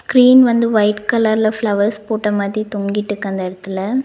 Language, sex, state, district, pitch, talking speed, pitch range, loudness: Tamil, female, Tamil Nadu, Nilgiris, 210 Hz, 150 wpm, 205-225 Hz, -16 LUFS